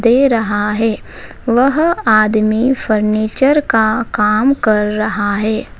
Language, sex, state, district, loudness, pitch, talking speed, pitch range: Hindi, female, Madhya Pradesh, Dhar, -14 LUFS, 220 Hz, 115 wpm, 215-250 Hz